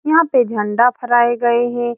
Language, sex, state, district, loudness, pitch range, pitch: Hindi, female, Bihar, Saran, -15 LUFS, 240-245 Hz, 240 Hz